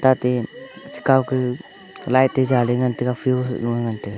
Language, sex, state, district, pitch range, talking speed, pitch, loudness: Wancho, male, Arunachal Pradesh, Longding, 120-130 Hz, 130 wpm, 125 Hz, -20 LUFS